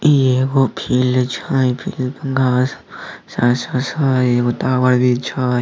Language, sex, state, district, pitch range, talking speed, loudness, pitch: Maithili, male, Bihar, Samastipur, 125-135 Hz, 140 wpm, -17 LUFS, 130 Hz